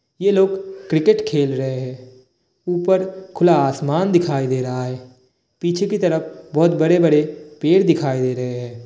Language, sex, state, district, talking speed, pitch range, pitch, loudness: Hindi, male, Bihar, Kishanganj, 160 wpm, 130-180 Hz, 160 Hz, -18 LUFS